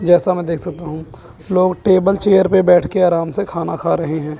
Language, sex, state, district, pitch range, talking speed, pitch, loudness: Hindi, male, Chandigarh, Chandigarh, 160-190 Hz, 230 wpm, 175 Hz, -15 LUFS